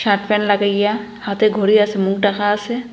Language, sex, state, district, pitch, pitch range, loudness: Bengali, female, Assam, Hailakandi, 205 Hz, 200-215 Hz, -17 LUFS